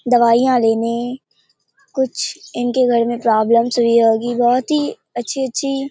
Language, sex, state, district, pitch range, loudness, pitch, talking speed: Hindi, female, Bihar, Purnia, 235-270 Hz, -17 LUFS, 245 Hz, 120 wpm